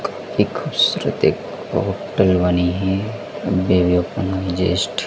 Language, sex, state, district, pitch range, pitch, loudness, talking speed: Hindi, male, Madhya Pradesh, Dhar, 90-95 Hz, 90 Hz, -19 LUFS, 70 wpm